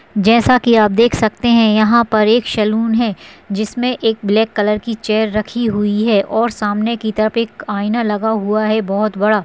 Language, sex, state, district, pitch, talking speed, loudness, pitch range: Hindi, female, Chhattisgarh, Sukma, 215 Hz, 195 wpm, -15 LUFS, 210-230 Hz